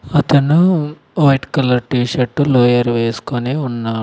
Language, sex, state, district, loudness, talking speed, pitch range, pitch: Telugu, male, Telangana, Mahabubabad, -15 LUFS, 120 wpm, 120-145 Hz, 130 Hz